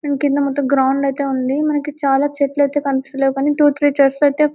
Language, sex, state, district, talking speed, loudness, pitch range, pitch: Telugu, female, Telangana, Karimnagar, 200 wpm, -17 LUFS, 275-290 Hz, 280 Hz